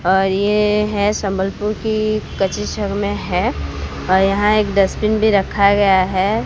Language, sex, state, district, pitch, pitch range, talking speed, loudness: Hindi, female, Odisha, Sambalpur, 200 Hz, 190-210 Hz, 140 wpm, -17 LUFS